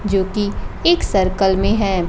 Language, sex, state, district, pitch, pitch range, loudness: Hindi, female, Bihar, Kaimur, 195 Hz, 190-205 Hz, -18 LUFS